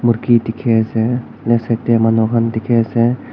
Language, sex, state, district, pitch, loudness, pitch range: Nagamese, male, Nagaland, Kohima, 115 Hz, -15 LUFS, 115-120 Hz